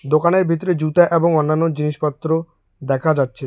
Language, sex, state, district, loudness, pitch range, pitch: Bengali, male, West Bengal, Alipurduar, -18 LUFS, 150-170 Hz, 160 Hz